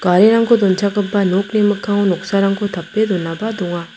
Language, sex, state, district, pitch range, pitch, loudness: Garo, female, Meghalaya, South Garo Hills, 185-210 Hz, 200 Hz, -16 LUFS